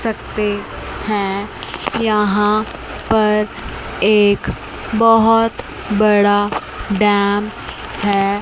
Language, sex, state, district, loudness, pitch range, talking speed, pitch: Hindi, female, Chandigarh, Chandigarh, -16 LUFS, 205-215 Hz, 65 wpm, 210 Hz